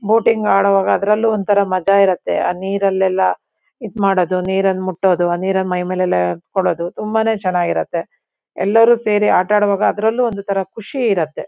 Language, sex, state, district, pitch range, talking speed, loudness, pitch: Kannada, female, Karnataka, Shimoga, 185-215 Hz, 130 wpm, -16 LUFS, 195 Hz